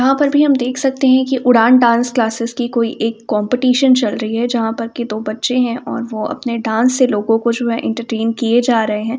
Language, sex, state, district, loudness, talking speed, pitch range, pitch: Hindi, female, Uttar Pradesh, Varanasi, -15 LUFS, 240 wpm, 225-255 Hz, 235 Hz